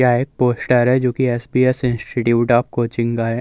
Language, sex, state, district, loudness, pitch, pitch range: Hindi, male, Uttar Pradesh, Muzaffarnagar, -17 LUFS, 120 Hz, 120-125 Hz